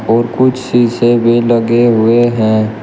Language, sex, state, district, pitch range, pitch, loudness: Hindi, male, Uttar Pradesh, Shamli, 115-120 Hz, 120 Hz, -11 LUFS